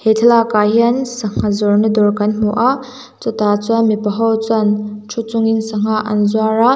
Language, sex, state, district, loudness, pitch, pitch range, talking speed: Mizo, female, Mizoram, Aizawl, -15 LUFS, 220 Hz, 210-230 Hz, 170 wpm